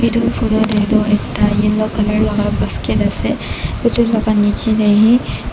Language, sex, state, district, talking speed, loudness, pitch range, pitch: Nagamese, male, Nagaland, Dimapur, 75 wpm, -15 LUFS, 210-225 Hz, 215 Hz